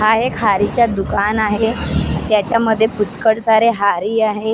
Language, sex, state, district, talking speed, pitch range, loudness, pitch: Marathi, female, Maharashtra, Gondia, 120 wpm, 210-225 Hz, -16 LUFS, 220 Hz